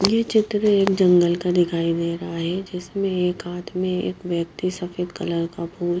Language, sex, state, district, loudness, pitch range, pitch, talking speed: Hindi, female, Haryana, Jhajjar, -22 LUFS, 170-190 Hz, 180 Hz, 190 wpm